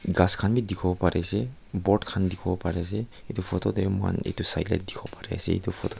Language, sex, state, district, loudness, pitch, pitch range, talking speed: Nagamese, male, Nagaland, Kohima, -24 LUFS, 95 Hz, 90-105 Hz, 210 wpm